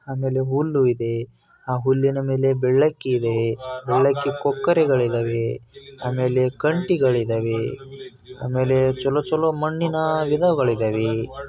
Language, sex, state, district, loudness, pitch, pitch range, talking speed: Kannada, male, Karnataka, Bijapur, -21 LUFS, 130 Hz, 125-140 Hz, 85 wpm